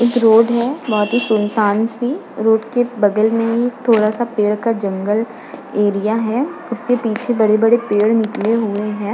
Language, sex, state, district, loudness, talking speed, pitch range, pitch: Hindi, female, Uttar Pradesh, Muzaffarnagar, -16 LUFS, 170 wpm, 210-240 Hz, 225 Hz